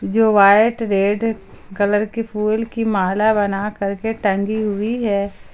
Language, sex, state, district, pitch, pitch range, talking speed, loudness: Hindi, female, Jharkhand, Ranchi, 210 Hz, 200-220 Hz, 150 wpm, -18 LUFS